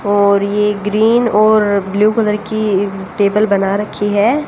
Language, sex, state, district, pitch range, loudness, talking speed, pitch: Hindi, female, Haryana, Jhajjar, 200-215 Hz, -14 LUFS, 145 wpm, 210 Hz